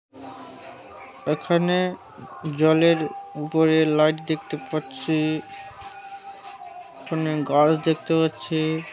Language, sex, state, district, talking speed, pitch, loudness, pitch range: Bengali, male, West Bengal, Malda, 75 wpm, 160 Hz, -22 LUFS, 155-185 Hz